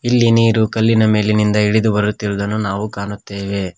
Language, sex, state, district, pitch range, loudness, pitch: Kannada, male, Karnataka, Koppal, 100-110 Hz, -16 LUFS, 105 Hz